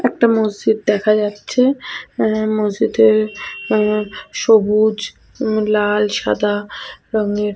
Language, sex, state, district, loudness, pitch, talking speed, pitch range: Bengali, female, Jharkhand, Sahebganj, -17 LUFS, 215 Hz, 105 wpm, 210-220 Hz